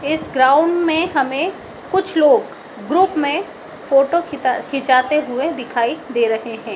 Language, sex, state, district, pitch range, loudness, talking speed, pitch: Hindi, female, Madhya Pradesh, Dhar, 255-320 Hz, -17 LUFS, 135 wpm, 285 Hz